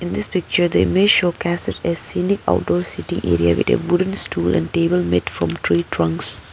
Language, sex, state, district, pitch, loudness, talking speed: English, female, Arunachal Pradesh, Papum Pare, 165 Hz, -18 LUFS, 195 wpm